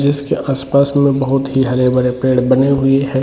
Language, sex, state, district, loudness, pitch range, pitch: Hindi, male, Bihar, Jamui, -14 LUFS, 130-140 Hz, 135 Hz